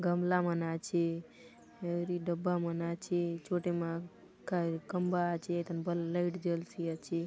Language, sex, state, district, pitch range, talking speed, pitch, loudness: Halbi, female, Chhattisgarh, Bastar, 170-175 Hz, 150 wpm, 175 Hz, -35 LUFS